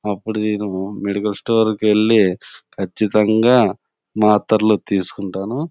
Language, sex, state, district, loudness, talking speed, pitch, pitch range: Telugu, male, Andhra Pradesh, Anantapur, -17 LUFS, 85 wpm, 105 Hz, 100-110 Hz